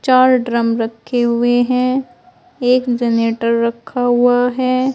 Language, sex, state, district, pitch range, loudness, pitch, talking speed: Hindi, female, Uttar Pradesh, Shamli, 235-255 Hz, -15 LUFS, 245 Hz, 120 wpm